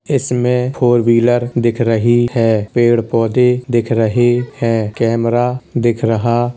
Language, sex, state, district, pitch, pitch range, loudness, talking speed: Hindi, male, Uttar Pradesh, Hamirpur, 120 Hz, 115-125 Hz, -14 LUFS, 135 wpm